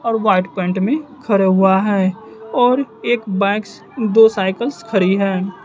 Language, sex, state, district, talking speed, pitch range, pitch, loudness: Hindi, male, Bihar, West Champaran, 150 wpm, 190-230 Hz, 205 Hz, -16 LUFS